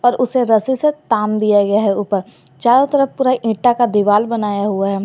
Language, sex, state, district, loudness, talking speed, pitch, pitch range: Hindi, female, Jharkhand, Garhwa, -15 LUFS, 200 wpm, 225 Hz, 205-250 Hz